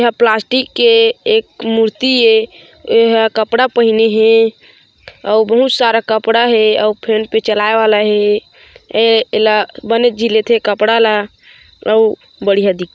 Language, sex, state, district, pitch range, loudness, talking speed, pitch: Chhattisgarhi, female, Chhattisgarh, Korba, 215-235 Hz, -12 LUFS, 125 wpm, 225 Hz